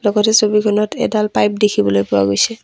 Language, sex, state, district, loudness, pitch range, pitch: Assamese, female, Assam, Kamrup Metropolitan, -15 LUFS, 205-215 Hz, 210 Hz